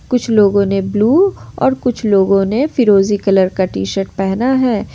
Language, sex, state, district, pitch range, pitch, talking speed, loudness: Hindi, female, Jharkhand, Ranchi, 195-245 Hz, 205 Hz, 180 wpm, -14 LUFS